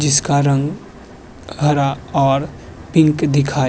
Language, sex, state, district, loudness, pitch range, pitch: Hindi, male, Uttar Pradesh, Hamirpur, -16 LUFS, 140-150 Hz, 140 Hz